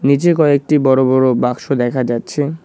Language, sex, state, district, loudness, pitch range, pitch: Bengali, male, West Bengal, Cooch Behar, -14 LUFS, 130-150 Hz, 135 Hz